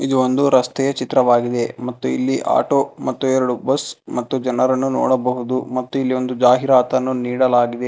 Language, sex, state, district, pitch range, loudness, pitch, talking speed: Kannada, male, Karnataka, Bangalore, 125-130 Hz, -18 LUFS, 130 Hz, 135 wpm